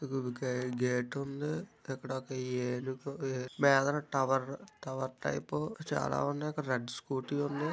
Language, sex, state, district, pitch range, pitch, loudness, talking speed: Telugu, male, Andhra Pradesh, Visakhapatnam, 130-140 Hz, 135 Hz, -35 LUFS, 115 wpm